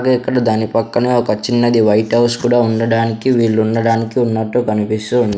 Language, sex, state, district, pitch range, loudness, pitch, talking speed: Telugu, male, Andhra Pradesh, Sri Satya Sai, 110-120 Hz, -15 LUFS, 115 Hz, 165 wpm